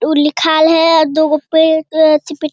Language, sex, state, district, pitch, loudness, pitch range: Hindi, male, Bihar, Jamui, 315 Hz, -11 LUFS, 305-320 Hz